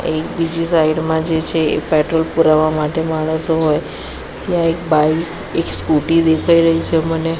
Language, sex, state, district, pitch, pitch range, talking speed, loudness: Gujarati, female, Gujarat, Gandhinagar, 160 Hz, 155-165 Hz, 170 wpm, -16 LUFS